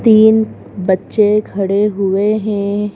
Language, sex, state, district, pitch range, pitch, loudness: Hindi, female, Madhya Pradesh, Bhopal, 200-215 Hz, 210 Hz, -14 LUFS